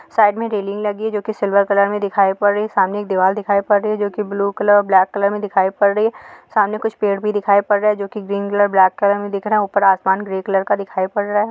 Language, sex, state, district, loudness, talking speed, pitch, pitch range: Hindi, female, Telangana, Nalgonda, -17 LUFS, 280 wpm, 205 Hz, 200-210 Hz